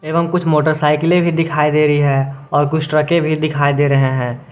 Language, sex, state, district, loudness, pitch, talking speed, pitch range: Hindi, male, Jharkhand, Garhwa, -15 LUFS, 150 Hz, 210 wpm, 145-160 Hz